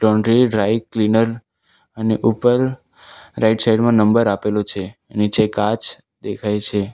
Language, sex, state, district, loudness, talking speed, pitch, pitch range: Gujarati, male, Gujarat, Valsad, -17 LUFS, 130 wpm, 110 Hz, 105-115 Hz